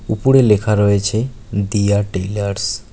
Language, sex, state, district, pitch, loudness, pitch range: Bengali, male, West Bengal, Alipurduar, 105 Hz, -16 LUFS, 100-110 Hz